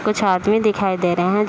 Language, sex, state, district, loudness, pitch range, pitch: Hindi, female, Bihar, Saharsa, -18 LUFS, 185-215 Hz, 200 Hz